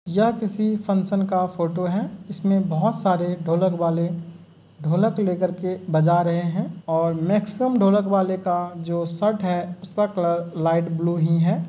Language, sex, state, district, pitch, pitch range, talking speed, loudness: Hindi, male, Uttar Pradesh, Muzaffarnagar, 180 Hz, 170-195 Hz, 160 wpm, -22 LUFS